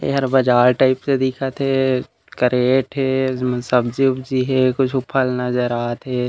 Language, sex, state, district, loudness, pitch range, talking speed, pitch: Chhattisgarhi, male, Chhattisgarh, Raigarh, -18 LUFS, 125-135 Hz, 160 wpm, 130 Hz